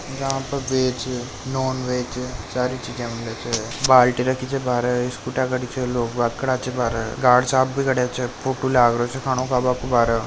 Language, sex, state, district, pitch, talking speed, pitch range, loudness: Marwari, male, Rajasthan, Nagaur, 125 Hz, 185 wpm, 120-130 Hz, -22 LUFS